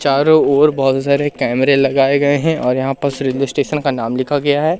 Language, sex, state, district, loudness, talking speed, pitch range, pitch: Hindi, male, Madhya Pradesh, Katni, -15 LUFS, 225 wpm, 135-145 Hz, 140 Hz